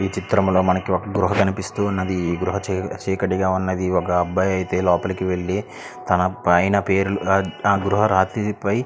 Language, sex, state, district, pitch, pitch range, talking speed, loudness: Telugu, male, Andhra Pradesh, Krishna, 95 Hz, 95-100 Hz, 185 wpm, -20 LUFS